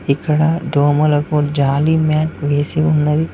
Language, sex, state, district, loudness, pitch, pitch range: Telugu, male, Telangana, Mahabubabad, -15 LUFS, 150 Hz, 145-155 Hz